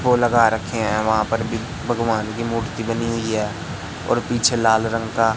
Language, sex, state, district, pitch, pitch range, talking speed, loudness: Hindi, male, Madhya Pradesh, Katni, 115 Hz, 110-115 Hz, 200 wpm, -21 LUFS